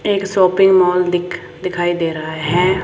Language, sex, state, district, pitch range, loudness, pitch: Hindi, female, Rajasthan, Jaipur, 175-185 Hz, -16 LUFS, 180 Hz